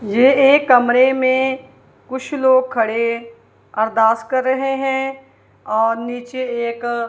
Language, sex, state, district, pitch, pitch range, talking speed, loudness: Hindi, female, Punjab, Kapurthala, 250 Hz, 230-265 Hz, 120 wpm, -17 LUFS